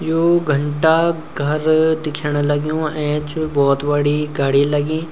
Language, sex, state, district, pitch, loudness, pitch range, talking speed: Garhwali, male, Uttarakhand, Uttarkashi, 150 Hz, -18 LUFS, 145-160 Hz, 105 wpm